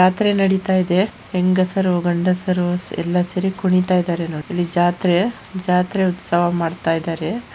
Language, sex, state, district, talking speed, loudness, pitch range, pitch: Kannada, female, Karnataka, Shimoga, 125 wpm, -19 LUFS, 175-185 Hz, 180 Hz